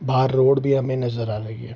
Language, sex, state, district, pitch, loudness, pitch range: Hindi, male, Bihar, Darbhanga, 130 Hz, -21 LUFS, 115-135 Hz